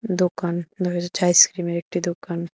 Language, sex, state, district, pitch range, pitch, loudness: Bengali, female, Tripura, West Tripura, 170-180 Hz, 175 Hz, -21 LUFS